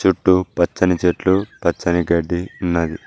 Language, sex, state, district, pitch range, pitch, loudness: Telugu, male, Telangana, Mahabubabad, 85-95 Hz, 90 Hz, -18 LUFS